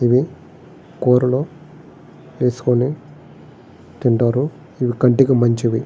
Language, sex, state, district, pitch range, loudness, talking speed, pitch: Telugu, male, Andhra Pradesh, Srikakulam, 120-135 Hz, -18 LUFS, 70 wpm, 125 Hz